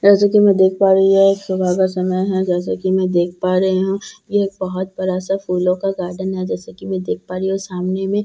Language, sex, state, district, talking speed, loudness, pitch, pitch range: Hindi, female, Bihar, Katihar, 285 wpm, -17 LUFS, 190 Hz, 180-195 Hz